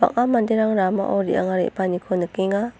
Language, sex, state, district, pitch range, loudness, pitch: Garo, female, Meghalaya, North Garo Hills, 185-225 Hz, -21 LUFS, 200 Hz